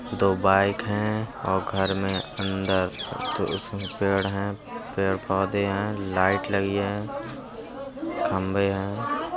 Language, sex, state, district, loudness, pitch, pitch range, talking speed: Hindi, male, Uttar Pradesh, Budaun, -26 LUFS, 100 Hz, 95-105 Hz, 120 wpm